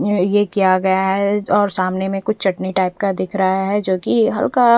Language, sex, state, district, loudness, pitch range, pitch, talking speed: Hindi, female, Punjab, Fazilka, -17 LUFS, 190-205 Hz, 195 Hz, 200 wpm